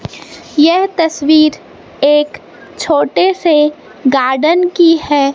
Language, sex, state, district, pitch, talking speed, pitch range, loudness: Hindi, female, Madhya Pradesh, Katni, 310 Hz, 90 wpm, 295-335 Hz, -12 LUFS